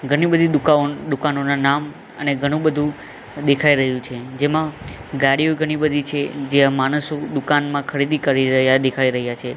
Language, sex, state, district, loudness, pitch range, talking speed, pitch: Gujarati, male, Gujarat, Gandhinagar, -18 LUFS, 135-150 Hz, 155 wpm, 140 Hz